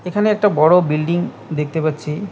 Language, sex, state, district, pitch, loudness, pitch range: Bengali, male, West Bengal, Cooch Behar, 165 Hz, -17 LUFS, 155-200 Hz